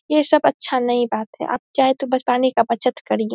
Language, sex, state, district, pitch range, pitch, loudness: Hindi, female, Bihar, Saharsa, 235-270 Hz, 255 Hz, -19 LUFS